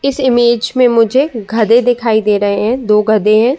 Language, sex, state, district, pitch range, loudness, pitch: Hindi, female, Uttar Pradesh, Muzaffarnagar, 215-250 Hz, -12 LUFS, 230 Hz